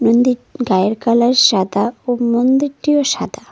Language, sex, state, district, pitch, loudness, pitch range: Bengali, female, West Bengal, Cooch Behar, 240 Hz, -15 LUFS, 230-255 Hz